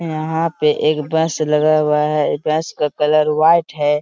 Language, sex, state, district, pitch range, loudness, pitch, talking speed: Hindi, male, Jharkhand, Sahebganj, 150-160 Hz, -16 LUFS, 155 Hz, 195 wpm